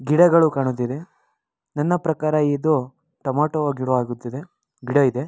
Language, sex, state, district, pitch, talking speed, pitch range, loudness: Kannada, male, Karnataka, Mysore, 145 Hz, 100 wpm, 130-160 Hz, -21 LUFS